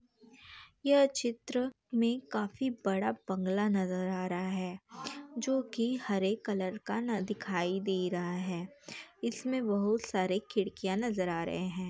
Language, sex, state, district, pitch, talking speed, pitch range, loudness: Hindi, female, Uttar Pradesh, Jalaun, 210 Hz, 135 wpm, 185-240 Hz, -33 LUFS